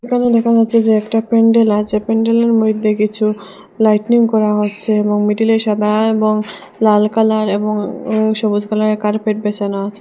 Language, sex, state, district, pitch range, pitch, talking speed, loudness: Bengali, female, Assam, Hailakandi, 210-225 Hz, 215 Hz, 155 wpm, -14 LUFS